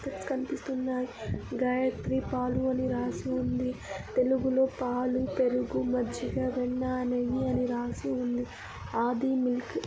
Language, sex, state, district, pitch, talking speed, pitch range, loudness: Telugu, female, Andhra Pradesh, Anantapur, 250 Hz, 110 wpm, 230-255 Hz, -30 LUFS